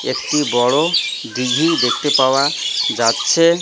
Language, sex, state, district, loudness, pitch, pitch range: Bengali, male, West Bengal, Cooch Behar, -16 LUFS, 145 Hz, 125-165 Hz